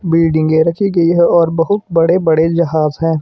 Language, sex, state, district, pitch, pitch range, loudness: Hindi, male, Himachal Pradesh, Shimla, 165 Hz, 160-170 Hz, -13 LUFS